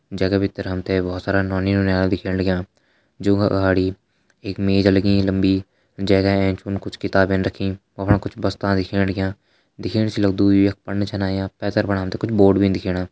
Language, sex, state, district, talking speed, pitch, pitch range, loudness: Hindi, male, Uttarakhand, Tehri Garhwal, 190 wpm, 100 Hz, 95-100 Hz, -20 LUFS